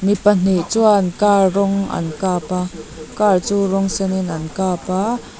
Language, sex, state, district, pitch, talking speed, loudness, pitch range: Mizo, female, Mizoram, Aizawl, 190 Hz, 180 wpm, -17 LUFS, 180-200 Hz